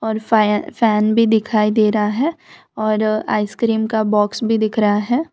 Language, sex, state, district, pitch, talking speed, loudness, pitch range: Hindi, female, Gujarat, Valsad, 220 Hz, 170 wpm, -17 LUFS, 210-225 Hz